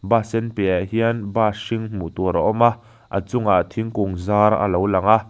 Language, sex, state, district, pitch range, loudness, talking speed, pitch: Mizo, male, Mizoram, Aizawl, 100-115 Hz, -20 LUFS, 215 wpm, 105 Hz